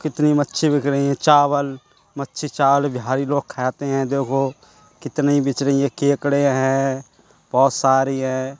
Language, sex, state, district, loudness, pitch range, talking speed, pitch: Hindi, male, Uttar Pradesh, Budaun, -19 LUFS, 135-145 Hz, 155 wpm, 140 Hz